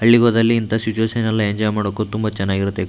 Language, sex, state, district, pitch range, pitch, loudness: Kannada, male, Karnataka, Raichur, 105-115 Hz, 110 Hz, -18 LUFS